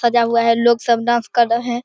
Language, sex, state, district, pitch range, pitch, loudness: Hindi, male, Bihar, Begusarai, 230-240 Hz, 235 Hz, -16 LUFS